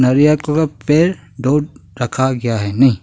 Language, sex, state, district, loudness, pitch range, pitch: Hindi, male, Arunachal Pradesh, Longding, -16 LUFS, 125-150 Hz, 135 Hz